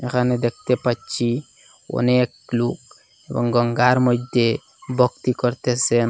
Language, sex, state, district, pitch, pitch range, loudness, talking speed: Bengali, male, Assam, Hailakandi, 125 Hz, 120-125 Hz, -21 LUFS, 100 wpm